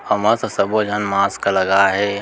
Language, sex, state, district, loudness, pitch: Chhattisgarhi, male, Chhattisgarh, Sukma, -17 LUFS, 100 Hz